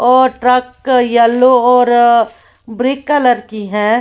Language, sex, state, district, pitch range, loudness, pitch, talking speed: Hindi, female, Maharashtra, Washim, 235-255 Hz, -12 LUFS, 245 Hz, 120 wpm